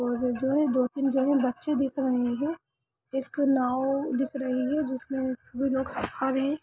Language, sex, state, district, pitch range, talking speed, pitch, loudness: Hindi, female, Bihar, Darbhanga, 255-275 Hz, 145 wpm, 270 Hz, -28 LUFS